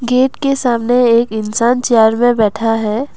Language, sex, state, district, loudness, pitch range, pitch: Hindi, female, Assam, Kamrup Metropolitan, -13 LUFS, 225-250 Hz, 235 Hz